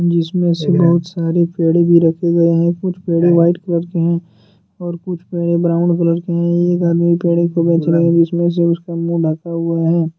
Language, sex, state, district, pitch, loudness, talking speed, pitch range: Hindi, male, Jharkhand, Deoghar, 170 Hz, -15 LUFS, 210 wpm, 170-175 Hz